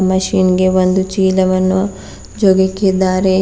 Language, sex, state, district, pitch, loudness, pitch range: Kannada, female, Karnataka, Bidar, 190 Hz, -14 LUFS, 185-190 Hz